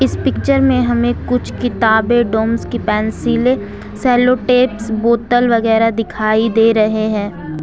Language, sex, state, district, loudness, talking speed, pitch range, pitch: Hindi, female, Jharkhand, Ranchi, -15 LUFS, 125 wpm, 220-245 Hz, 230 Hz